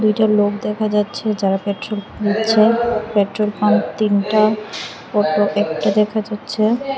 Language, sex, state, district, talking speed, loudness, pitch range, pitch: Bengali, female, Tripura, West Tripura, 120 wpm, -18 LUFS, 205-215 Hz, 210 Hz